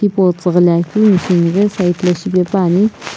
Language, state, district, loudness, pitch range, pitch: Sumi, Nagaland, Kohima, -13 LUFS, 175-200 Hz, 185 Hz